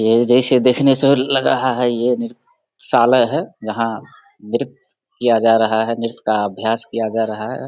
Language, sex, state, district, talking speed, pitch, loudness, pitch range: Hindi, male, Bihar, Samastipur, 190 wpm, 115 Hz, -16 LUFS, 110-125 Hz